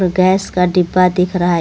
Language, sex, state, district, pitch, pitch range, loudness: Hindi, female, Jharkhand, Garhwa, 180 Hz, 180-185 Hz, -14 LUFS